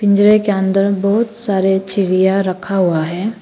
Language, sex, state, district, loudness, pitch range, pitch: Hindi, female, Arunachal Pradesh, Papum Pare, -15 LUFS, 190-205 Hz, 195 Hz